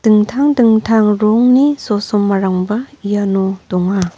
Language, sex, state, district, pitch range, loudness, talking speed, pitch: Garo, female, Meghalaya, North Garo Hills, 195-235 Hz, -14 LUFS, 85 wpm, 210 Hz